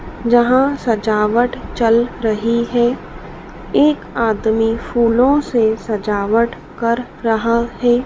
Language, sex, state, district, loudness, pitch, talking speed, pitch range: Hindi, female, Madhya Pradesh, Dhar, -16 LUFS, 235 Hz, 95 wpm, 225-240 Hz